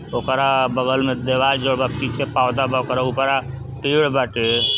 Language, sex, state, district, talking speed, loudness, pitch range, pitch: Bhojpuri, male, Uttar Pradesh, Ghazipur, 165 wpm, -19 LUFS, 125-135 Hz, 130 Hz